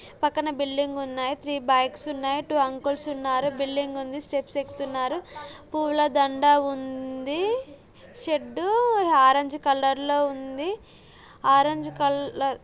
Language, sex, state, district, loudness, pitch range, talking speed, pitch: Telugu, female, Andhra Pradesh, Guntur, -25 LUFS, 275-300 Hz, 70 wpm, 280 Hz